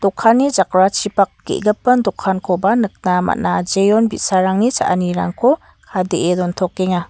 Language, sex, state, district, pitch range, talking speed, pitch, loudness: Garo, female, Meghalaya, West Garo Hills, 180-220 Hz, 95 wpm, 195 Hz, -16 LUFS